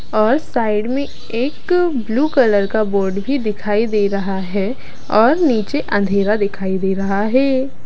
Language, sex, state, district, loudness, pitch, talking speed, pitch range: Hindi, female, Bihar, Saran, -17 LUFS, 215 Hz, 155 wpm, 200-265 Hz